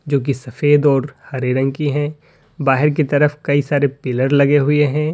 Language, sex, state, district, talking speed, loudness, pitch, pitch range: Hindi, male, Uttar Pradesh, Lalitpur, 200 wpm, -17 LUFS, 145 Hz, 135-150 Hz